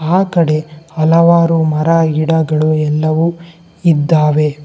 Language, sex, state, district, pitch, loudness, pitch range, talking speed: Kannada, male, Karnataka, Bangalore, 160 Hz, -13 LUFS, 155-165 Hz, 75 wpm